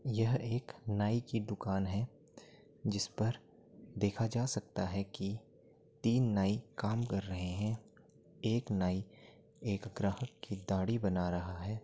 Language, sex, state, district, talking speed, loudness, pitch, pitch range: Hindi, male, Uttar Pradesh, Jyotiba Phule Nagar, 135 wpm, -37 LUFS, 105 Hz, 100-115 Hz